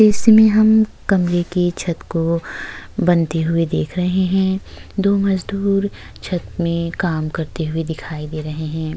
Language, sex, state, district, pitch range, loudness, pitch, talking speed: Hindi, female, Uttar Pradesh, Jyotiba Phule Nagar, 165-195 Hz, -18 LUFS, 175 Hz, 145 wpm